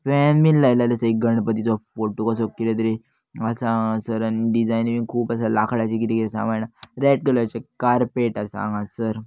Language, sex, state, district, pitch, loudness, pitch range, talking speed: Konkani, male, Goa, North and South Goa, 115 Hz, -21 LUFS, 110-120 Hz, 170 wpm